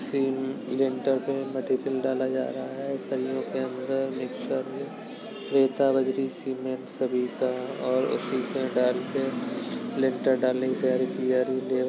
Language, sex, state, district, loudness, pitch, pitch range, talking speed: Hindi, male, Uttar Pradesh, Budaun, -28 LUFS, 130 Hz, 130-135 Hz, 155 wpm